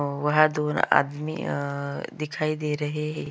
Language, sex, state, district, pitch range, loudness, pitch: Hindi, female, Chhattisgarh, Sukma, 145-155 Hz, -25 LUFS, 150 Hz